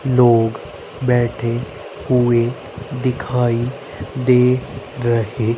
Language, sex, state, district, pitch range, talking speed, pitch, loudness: Hindi, male, Haryana, Rohtak, 115-130 Hz, 65 wpm, 125 Hz, -18 LUFS